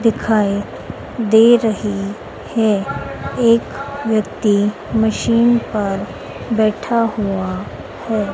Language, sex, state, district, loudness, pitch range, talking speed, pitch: Hindi, female, Madhya Pradesh, Dhar, -17 LUFS, 200-230 Hz, 80 wpm, 215 Hz